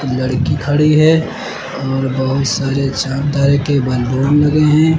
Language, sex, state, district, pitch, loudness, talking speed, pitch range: Hindi, male, Uttar Pradesh, Lucknow, 140 Hz, -15 LUFS, 145 wpm, 135-150 Hz